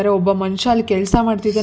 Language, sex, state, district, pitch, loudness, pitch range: Kannada, female, Karnataka, Bangalore, 205 Hz, -17 LUFS, 195-225 Hz